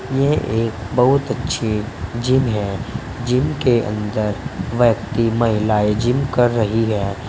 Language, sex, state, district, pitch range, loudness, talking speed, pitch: Hindi, male, Uttar Pradesh, Saharanpur, 105-125 Hz, -19 LUFS, 125 wpm, 115 Hz